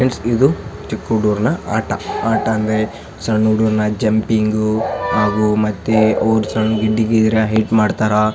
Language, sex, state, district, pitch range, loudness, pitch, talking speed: Kannada, male, Karnataka, Raichur, 105-110 Hz, -16 LUFS, 110 Hz, 110 wpm